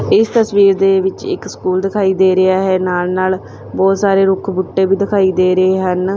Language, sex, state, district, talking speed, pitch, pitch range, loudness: Punjabi, female, Punjab, Fazilka, 205 wpm, 190 Hz, 185-195 Hz, -14 LUFS